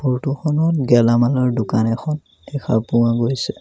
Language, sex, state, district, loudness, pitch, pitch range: Assamese, male, Assam, Sonitpur, -18 LUFS, 125 Hz, 115-145 Hz